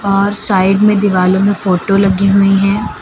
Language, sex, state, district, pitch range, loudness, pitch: Hindi, female, Uttar Pradesh, Lucknow, 195-200 Hz, -12 LUFS, 195 Hz